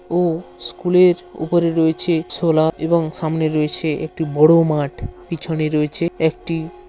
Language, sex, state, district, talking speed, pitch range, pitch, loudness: Bengali, male, West Bengal, Paschim Medinipur, 120 wpm, 155-170 Hz, 160 Hz, -18 LUFS